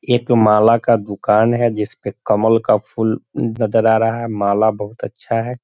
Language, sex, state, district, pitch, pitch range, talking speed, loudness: Hindi, male, Bihar, Sitamarhi, 110 Hz, 105-115 Hz, 190 wpm, -16 LUFS